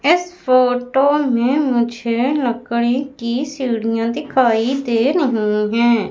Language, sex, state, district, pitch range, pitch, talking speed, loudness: Hindi, female, Madhya Pradesh, Umaria, 235-275 Hz, 245 Hz, 110 wpm, -17 LUFS